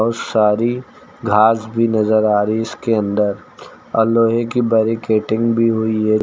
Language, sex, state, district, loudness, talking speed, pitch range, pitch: Hindi, male, Uttar Pradesh, Lucknow, -16 LUFS, 145 wpm, 110-115 Hz, 110 Hz